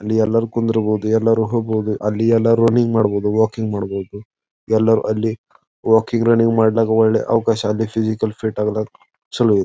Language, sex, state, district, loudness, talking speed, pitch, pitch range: Kannada, male, Karnataka, Bijapur, -17 LUFS, 150 wpm, 110 Hz, 110-115 Hz